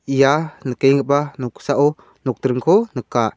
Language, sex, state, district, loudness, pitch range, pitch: Garo, male, Meghalaya, South Garo Hills, -18 LUFS, 130-145 Hz, 140 Hz